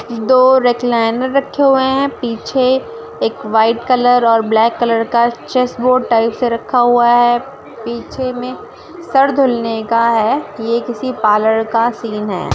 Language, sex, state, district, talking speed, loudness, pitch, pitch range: Hindi, female, Maharashtra, Sindhudurg, 160 wpm, -14 LUFS, 240 Hz, 230-255 Hz